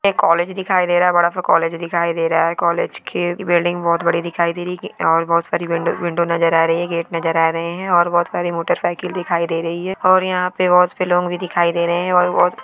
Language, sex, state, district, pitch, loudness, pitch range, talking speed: Hindi, female, Maharashtra, Sindhudurg, 175 Hz, -17 LUFS, 170-180 Hz, 270 wpm